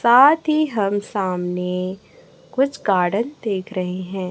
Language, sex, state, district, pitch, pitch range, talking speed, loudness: Hindi, female, Chhattisgarh, Raipur, 200 Hz, 185-255 Hz, 110 wpm, -20 LUFS